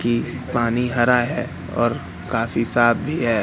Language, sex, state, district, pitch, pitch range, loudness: Hindi, male, Madhya Pradesh, Katni, 120 Hz, 115-120 Hz, -20 LUFS